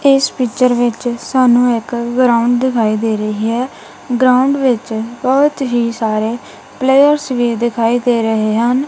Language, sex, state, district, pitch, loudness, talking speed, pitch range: Punjabi, female, Punjab, Kapurthala, 240 Hz, -14 LUFS, 140 wpm, 230-255 Hz